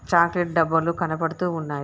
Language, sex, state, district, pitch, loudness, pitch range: Telugu, female, Andhra Pradesh, Guntur, 170 Hz, -23 LUFS, 165-170 Hz